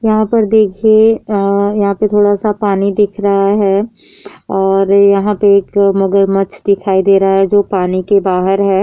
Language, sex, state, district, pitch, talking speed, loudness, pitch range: Hindi, female, Uttar Pradesh, Jyotiba Phule Nagar, 200 Hz, 175 wpm, -12 LUFS, 195-210 Hz